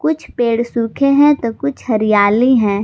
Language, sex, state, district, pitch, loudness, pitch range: Hindi, female, Jharkhand, Garhwa, 235 Hz, -14 LUFS, 220-275 Hz